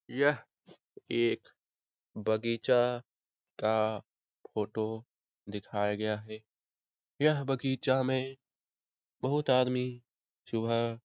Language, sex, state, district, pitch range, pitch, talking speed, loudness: Hindi, male, Bihar, Lakhisarai, 110-130 Hz, 115 Hz, 90 wpm, -32 LUFS